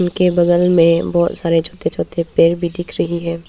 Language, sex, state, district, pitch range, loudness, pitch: Hindi, female, Arunachal Pradesh, Papum Pare, 170-175 Hz, -15 LUFS, 170 Hz